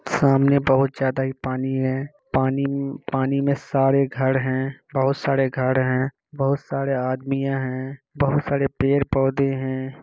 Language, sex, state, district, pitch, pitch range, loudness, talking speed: Hindi, male, Bihar, Kishanganj, 135 Hz, 130-140 Hz, -22 LUFS, 145 wpm